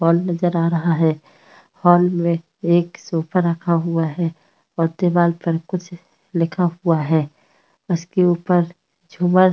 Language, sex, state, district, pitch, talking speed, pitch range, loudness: Hindi, female, Maharashtra, Chandrapur, 170 Hz, 145 wpm, 165-180 Hz, -19 LUFS